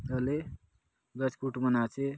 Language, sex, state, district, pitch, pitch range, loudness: Halbi, male, Chhattisgarh, Bastar, 130 Hz, 125-140 Hz, -32 LUFS